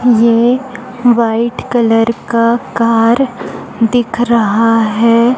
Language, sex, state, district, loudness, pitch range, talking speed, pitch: Hindi, female, Chhattisgarh, Raipur, -12 LUFS, 230-245 Hz, 90 wpm, 235 Hz